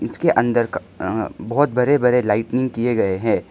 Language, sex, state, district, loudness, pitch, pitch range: Hindi, male, Arunachal Pradesh, Lower Dibang Valley, -19 LUFS, 120 Hz, 115-125 Hz